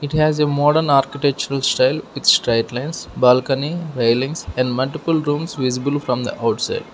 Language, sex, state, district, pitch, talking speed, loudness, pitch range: English, male, Arunachal Pradesh, Lower Dibang Valley, 140 Hz, 155 wpm, -18 LUFS, 130-150 Hz